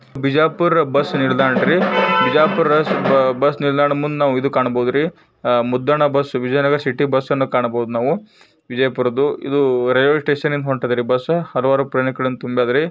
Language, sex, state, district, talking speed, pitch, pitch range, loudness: Kannada, male, Karnataka, Bijapur, 120 wpm, 135 Hz, 125-145 Hz, -17 LUFS